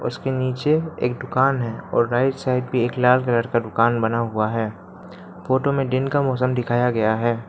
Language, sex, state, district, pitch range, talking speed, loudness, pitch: Hindi, male, Arunachal Pradesh, Lower Dibang Valley, 115-130 Hz, 200 wpm, -21 LUFS, 125 Hz